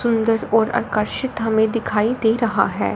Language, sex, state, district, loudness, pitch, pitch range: Hindi, female, Punjab, Fazilka, -19 LUFS, 225 Hz, 220-230 Hz